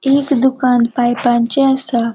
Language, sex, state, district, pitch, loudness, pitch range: Konkani, female, Goa, North and South Goa, 250 Hz, -14 LUFS, 240-270 Hz